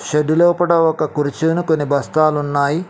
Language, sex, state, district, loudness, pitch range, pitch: Telugu, male, Telangana, Mahabubabad, -16 LUFS, 145-165 Hz, 155 Hz